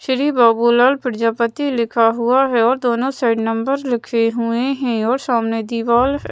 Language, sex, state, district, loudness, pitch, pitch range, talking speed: Hindi, female, Madhya Pradesh, Bhopal, -17 LUFS, 235 Hz, 230-260 Hz, 160 wpm